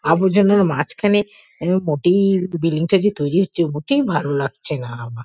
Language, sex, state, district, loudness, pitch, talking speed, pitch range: Bengali, female, West Bengal, Kolkata, -18 LUFS, 175 Hz, 170 wpm, 150-195 Hz